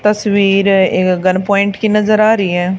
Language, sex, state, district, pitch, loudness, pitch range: Hindi, female, Haryana, Charkhi Dadri, 200 Hz, -12 LUFS, 185-210 Hz